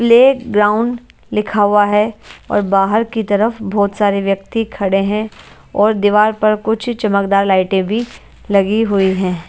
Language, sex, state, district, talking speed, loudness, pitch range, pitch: Hindi, female, Haryana, Charkhi Dadri, 150 wpm, -15 LUFS, 200-220 Hz, 210 Hz